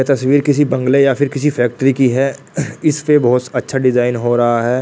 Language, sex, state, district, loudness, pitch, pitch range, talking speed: Hindi, male, Bihar, Purnia, -14 LUFS, 135 Hz, 125-145 Hz, 225 wpm